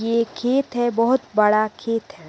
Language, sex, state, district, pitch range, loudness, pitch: Hindi, female, Uttar Pradesh, Gorakhpur, 215-240 Hz, -20 LUFS, 230 Hz